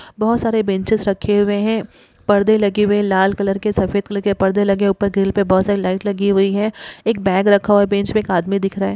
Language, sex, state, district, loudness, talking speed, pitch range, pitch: Hindi, female, Uttar Pradesh, Gorakhpur, -17 LUFS, 260 wpm, 195-205 Hz, 200 Hz